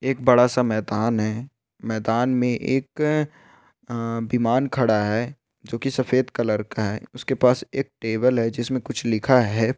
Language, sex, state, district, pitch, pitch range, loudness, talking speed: Hindi, male, Rajasthan, Churu, 120 Hz, 110-130 Hz, -22 LUFS, 155 wpm